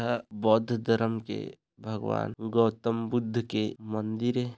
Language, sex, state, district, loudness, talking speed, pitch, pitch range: Chhattisgarhi, male, Chhattisgarh, Raigarh, -29 LUFS, 130 wpm, 115 Hz, 110-120 Hz